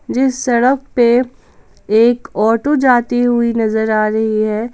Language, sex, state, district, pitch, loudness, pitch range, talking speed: Hindi, female, Jharkhand, Palamu, 235 Hz, -14 LUFS, 220-250 Hz, 140 wpm